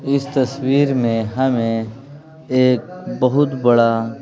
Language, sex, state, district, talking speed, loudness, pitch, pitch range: Hindi, male, Bihar, Patna, 115 wpm, -17 LUFS, 130 Hz, 115-140 Hz